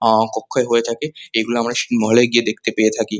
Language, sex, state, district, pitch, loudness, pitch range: Bengali, male, West Bengal, Kolkata, 115 Hz, -18 LUFS, 110-120 Hz